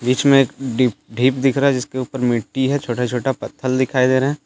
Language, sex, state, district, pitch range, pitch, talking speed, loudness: Hindi, male, Jharkhand, Deoghar, 125-135 Hz, 130 Hz, 240 wpm, -18 LUFS